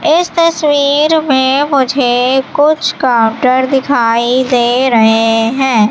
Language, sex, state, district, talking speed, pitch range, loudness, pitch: Hindi, female, Madhya Pradesh, Katni, 100 wpm, 245-295 Hz, -11 LUFS, 265 Hz